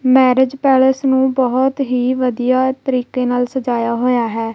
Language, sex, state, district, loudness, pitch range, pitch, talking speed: Punjabi, female, Punjab, Kapurthala, -15 LUFS, 245-265 Hz, 255 Hz, 145 wpm